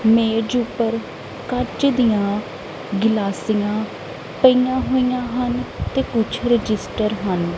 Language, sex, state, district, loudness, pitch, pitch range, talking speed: Punjabi, female, Punjab, Kapurthala, -20 LUFS, 225 Hz, 215-250 Hz, 95 wpm